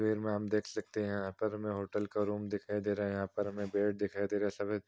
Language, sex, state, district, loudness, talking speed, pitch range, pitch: Hindi, male, Uttar Pradesh, Muzaffarnagar, -36 LUFS, 305 wpm, 100-105 Hz, 105 Hz